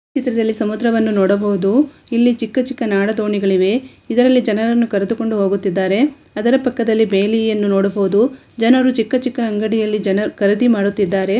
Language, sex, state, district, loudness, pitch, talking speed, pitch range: Kannada, female, Karnataka, Shimoga, -16 LUFS, 220 Hz, 130 wpm, 200-240 Hz